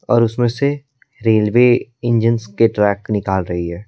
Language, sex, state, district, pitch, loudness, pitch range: Hindi, male, Delhi, New Delhi, 115 Hz, -16 LUFS, 105-120 Hz